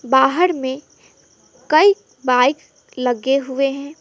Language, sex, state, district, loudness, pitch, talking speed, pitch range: Hindi, female, West Bengal, Alipurduar, -17 LUFS, 270 Hz, 105 wpm, 255-300 Hz